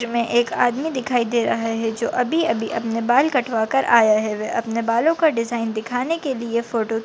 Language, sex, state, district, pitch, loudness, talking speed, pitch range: Hindi, female, Maharashtra, Chandrapur, 235 Hz, -20 LUFS, 210 wpm, 225-250 Hz